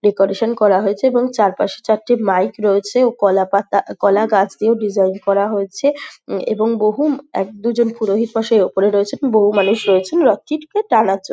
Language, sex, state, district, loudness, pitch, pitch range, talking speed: Bengali, female, West Bengal, Dakshin Dinajpur, -16 LUFS, 210 Hz, 200-235 Hz, 170 wpm